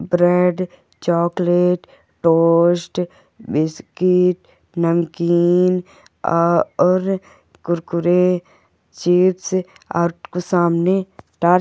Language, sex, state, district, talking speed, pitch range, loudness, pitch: Hindi, female, Goa, North and South Goa, 60 wpm, 170-180 Hz, -18 LUFS, 175 Hz